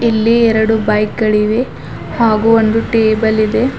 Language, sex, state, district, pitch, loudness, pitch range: Kannada, female, Karnataka, Bidar, 220 Hz, -13 LUFS, 215-230 Hz